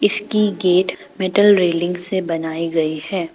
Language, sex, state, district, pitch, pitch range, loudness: Hindi, female, Arunachal Pradesh, Papum Pare, 180 Hz, 165-190 Hz, -17 LUFS